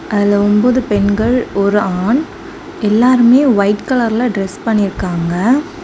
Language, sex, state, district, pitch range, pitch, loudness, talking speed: Tamil, female, Tamil Nadu, Kanyakumari, 200-255 Hz, 220 Hz, -13 LUFS, 105 wpm